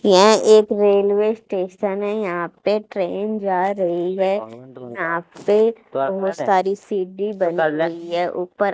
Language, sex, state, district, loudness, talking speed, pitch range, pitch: Hindi, female, Haryana, Charkhi Dadri, -19 LUFS, 135 wpm, 175-205 Hz, 190 Hz